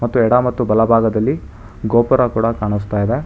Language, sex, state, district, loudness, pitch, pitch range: Kannada, male, Karnataka, Bangalore, -16 LUFS, 115 Hz, 105-120 Hz